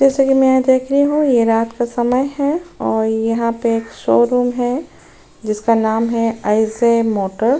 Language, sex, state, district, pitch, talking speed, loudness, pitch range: Hindi, female, Uttar Pradesh, Jyotiba Phule Nagar, 235 Hz, 175 wpm, -16 LUFS, 225-260 Hz